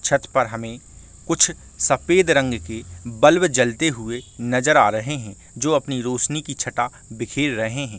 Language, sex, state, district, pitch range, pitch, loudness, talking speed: Hindi, male, Chhattisgarh, Rajnandgaon, 115-145 Hz, 125 Hz, -20 LUFS, 165 wpm